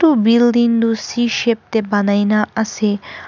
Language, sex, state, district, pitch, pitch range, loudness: Nagamese, female, Nagaland, Kohima, 225 Hz, 210-235 Hz, -16 LUFS